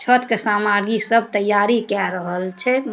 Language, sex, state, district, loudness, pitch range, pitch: Maithili, female, Bihar, Darbhanga, -19 LUFS, 205-230 Hz, 210 Hz